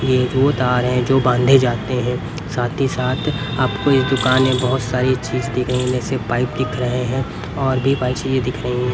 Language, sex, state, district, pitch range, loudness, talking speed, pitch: Hindi, male, Haryana, Rohtak, 125-130 Hz, -18 LUFS, 220 wpm, 125 Hz